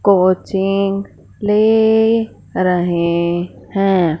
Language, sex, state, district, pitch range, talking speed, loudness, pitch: Hindi, female, Punjab, Fazilka, 175-210 Hz, 55 wpm, -16 LUFS, 195 Hz